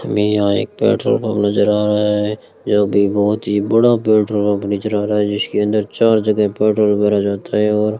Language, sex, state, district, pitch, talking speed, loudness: Hindi, male, Rajasthan, Bikaner, 105 Hz, 225 wpm, -16 LUFS